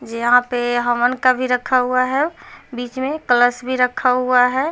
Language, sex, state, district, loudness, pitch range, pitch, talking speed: Hindi, female, Bihar, Patna, -17 LUFS, 245-255 Hz, 250 Hz, 190 wpm